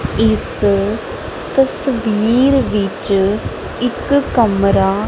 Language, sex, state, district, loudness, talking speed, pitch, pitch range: Punjabi, female, Punjab, Kapurthala, -16 LUFS, 70 wpm, 220 Hz, 200-250 Hz